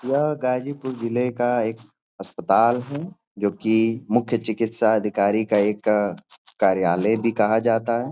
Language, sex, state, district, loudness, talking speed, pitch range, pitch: Hindi, male, Uttar Pradesh, Ghazipur, -22 LUFS, 125 wpm, 105-125 Hz, 115 Hz